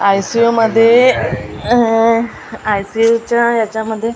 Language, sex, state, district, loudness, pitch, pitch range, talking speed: Marathi, female, Maharashtra, Gondia, -13 LUFS, 230 Hz, 220-235 Hz, 85 wpm